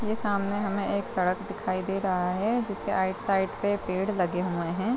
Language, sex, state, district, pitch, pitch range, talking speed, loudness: Hindi, female, Chhattisgarh, Bilaspur, 195 Hz, 185-205 Hz, 205 wpm, -28 LUFS